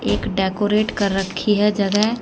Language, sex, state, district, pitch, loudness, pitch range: Hindi, female, Haryana, Jhajjar, 205 Hz, -19 LUFS, 195-210 Hz